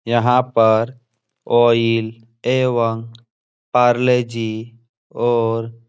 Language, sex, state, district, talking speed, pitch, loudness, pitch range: Hindi, male, Bihar, Supaul, 80 wpm, 115 Hz, -17 LUFS, 115-120 Hz